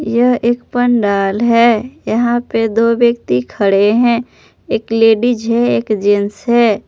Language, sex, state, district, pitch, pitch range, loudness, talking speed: Hindi, female, Jharkhand, Palamu, 230 Hz, 210-240 Hz, -13 LUFS, 140 wpm